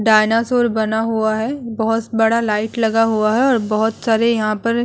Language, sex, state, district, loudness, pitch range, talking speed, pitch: Hindi, female, Uttar Pradesh, Hamirpur, -17 LUFS, 220-230 Hz, 195 wpm, 225 Hz